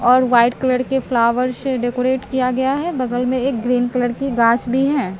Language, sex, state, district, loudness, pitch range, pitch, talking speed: Hindi, female, Bihar, Katihar, -18 LUFS, 245-260 Hz, 255 Hz, 220 wpm